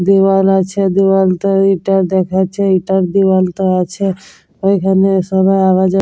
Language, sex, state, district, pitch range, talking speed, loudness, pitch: Bengali, female, West Bengal, Jalpaiguri, 190-195 Hz, 120 wpm, -13 LUFS, 190 Hz